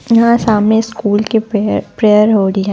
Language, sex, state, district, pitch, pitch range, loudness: Hindi, female, Punjab, Fazilka, 215 Hz, 210-225 Hz, -12 LUFS